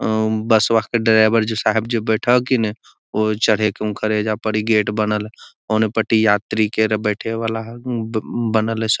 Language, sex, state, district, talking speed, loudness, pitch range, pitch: Magahi, male, Bihar, Gaya, 215 wpm, -19 LUFS, 110-115 Hz, 110 Hz